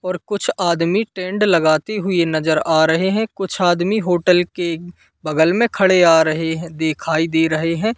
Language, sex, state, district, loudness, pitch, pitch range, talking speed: Hindi, male, Madhya Pradesh, Katni, -17 LUFS, 175 Hz, 160-190 Hz, 180 wpm